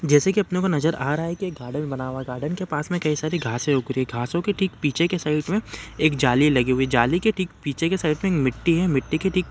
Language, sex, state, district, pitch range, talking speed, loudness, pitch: Hindi, male, Uttar Pradesh, Ghazipur, 135-180 Hz, 305 wpm, -23 LUFS, 155 Hz